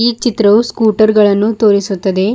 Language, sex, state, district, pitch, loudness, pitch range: Kannada, female, Karnataka, Bidar, 215 Hz, -11 LUFS, 205-225 Hz